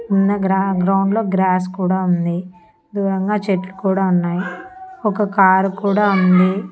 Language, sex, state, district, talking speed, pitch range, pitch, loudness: Telugu, female, Andhra Pradesh, Annamaya, 135 wpm, 185-205 Hz, 195 Hz, -17 LUFS